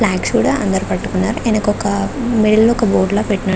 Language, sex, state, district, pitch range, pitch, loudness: Telugu, female, Andhra Pradesh, Guntur, 195-225 Hz, 210 Hz, -15 LUFS